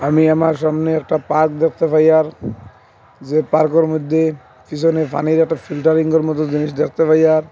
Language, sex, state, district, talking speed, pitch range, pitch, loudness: Bengali, male, Assam, Hailakandi, 185 wpm, 150-160 Hz, 155 Hz, -16 LUFS